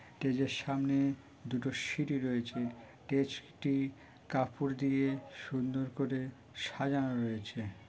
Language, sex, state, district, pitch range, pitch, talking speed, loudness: Bengali, male, West Bengal, Malda, 125-140 Hz, 135 Hz, 115 wpm, -36 LUFS